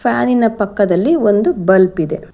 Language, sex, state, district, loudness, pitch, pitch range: Kannada, female, Karnataka, Bangalore, -14 LUFS, 195 Hz, 180-210 Hz